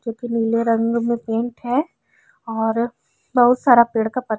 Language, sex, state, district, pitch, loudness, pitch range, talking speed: Hindi, female, Chhattisgarh, Korba, 235 Hz, -19 LUFS, 225-245 Hz, 190 wpm